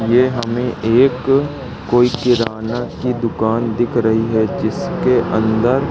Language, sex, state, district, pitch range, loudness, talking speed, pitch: Hindi, male, Madhya Pradesh, Katni, 115-125 Hz, -16 LUFS, 120 wpm, 120 Hz